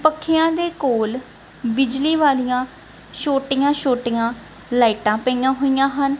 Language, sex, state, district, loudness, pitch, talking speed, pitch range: Punjabi, female, Punjab, Kapurthala, -19 LUFS, 265 Hz, 105 wpm, 245-285 Hz